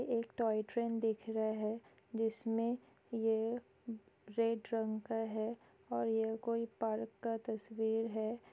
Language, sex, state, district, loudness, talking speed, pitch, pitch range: Hindi, female, Chhattisgarh, Sukma, -39 LUFS, 135 wpm, 225 Hz, 220-230 Hz